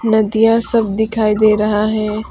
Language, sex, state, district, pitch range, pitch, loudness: Hindi, female, West Bengal, Alipurduar, 215-225 Hz, 215 Hz, -14 LUFS